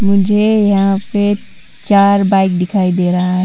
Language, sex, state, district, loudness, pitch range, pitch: Hindi, female, Arunachal Pradesh, Lower Dibang Valley, -13 LUFS, 185-205 Hz, 200 Hz